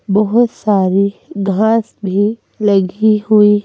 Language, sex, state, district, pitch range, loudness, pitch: Hindi, female, Madhya Pradesh, Bhopal, 195-215 Hz, -14 LUFS, 210 Hz